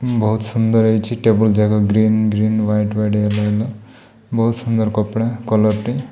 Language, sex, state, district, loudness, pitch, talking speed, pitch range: Odia, male, Odisha, Malkangiri, -17 LUFS, 110 Hz, 135 wpm, 105-115 Hz